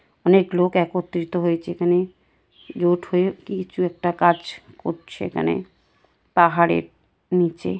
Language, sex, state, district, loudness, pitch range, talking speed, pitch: Bengali, female, West Bengal, Paschim Medinipur, -21 LUFS, 170-180 Hz, 125 wpm, 175 Hz